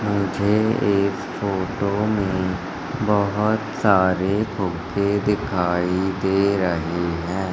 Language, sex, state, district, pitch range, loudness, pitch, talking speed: Hindi, male, Madhya Pradesh, Katni, 95-105 Hz, -21 LUFS, 100 Hz, 90 wpm